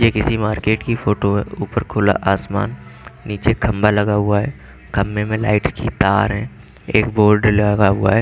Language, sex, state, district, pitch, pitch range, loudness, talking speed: Hindi, male, Chandigarh, Chandigarh, 105 Hz, 105-110 Hz, -17 LUFS, 180 wpm